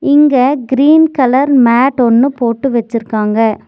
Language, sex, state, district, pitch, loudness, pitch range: Tamil, female, Tamil Nadu, Nilgiris, 255 Hz, -11 LUFS, 235-280 Hz